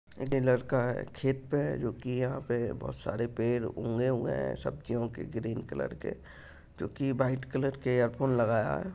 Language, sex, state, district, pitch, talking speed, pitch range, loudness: Hindi, male, Bihar, Lakhisarai, 125 Hz, 195 wpm, 115-135 Hz, -32 LUFS